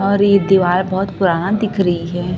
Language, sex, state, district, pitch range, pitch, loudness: Hindi, female, Chhattisgarh, Raipur, 175-200 Hz, 190 Hz, -15 LUFS